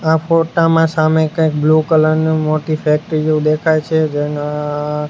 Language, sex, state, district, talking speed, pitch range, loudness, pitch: Gujarati, male, Gujarat, Gandhinagar, 175 wpm, 150-160 Hz, -15 LUFS, 155 Hz